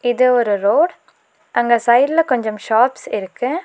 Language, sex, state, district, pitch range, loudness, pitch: Tamil, female, Tamil Nadu, Nilgiris, 225-295 Hz, -16 LUFS, 245 Hz